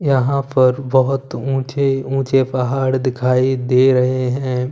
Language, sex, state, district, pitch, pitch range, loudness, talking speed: Hindi, male, Punjab, Kapurthala, 130 Hz, 130-135 Hz, -17 LUFS, 125 wpm